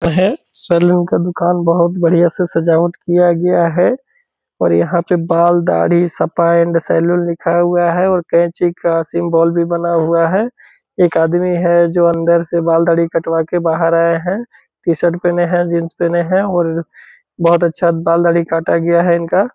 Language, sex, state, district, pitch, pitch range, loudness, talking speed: Hindi, male, Bihar, Purnia, 170 Hz, 170-175 Hz, -14 LUFS, 185 wpm